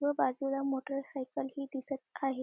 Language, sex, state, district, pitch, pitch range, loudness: Marathi, female, Maharashtra, Dhule, 275 Hz, 265-275 Hz, -36 LUFS